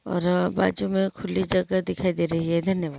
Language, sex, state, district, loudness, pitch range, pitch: Hindi, female, Uttarakhand, Uttarkashi, -24 LUFS, 150-185 Hz, 175 Hz